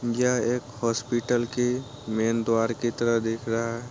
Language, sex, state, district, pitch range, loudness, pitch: Hindi, male, Bihar, Muzaffarpur, 115-120 Hz, -26 LUFS, 120 Hz